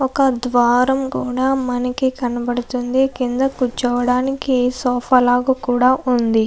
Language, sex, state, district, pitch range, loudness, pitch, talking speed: Telugu, female, Andhra Pradesh, Anantapur, 245-265 Hz, -18 LUFS, 250 Hz, 100 wpm